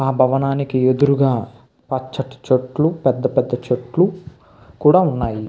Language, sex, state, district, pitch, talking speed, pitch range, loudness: Telugu, male, Andhra Pradesh, Visakhapatnam, 130 Hz, 110 wpm, 125-140 Hz, -18 LUFS